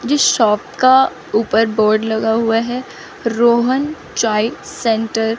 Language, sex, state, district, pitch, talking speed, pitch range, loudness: Hindi, female, Chandigarh, Chandigarh, 230 Hz, 135 wpm, 220-260 Hz, -16 LUFS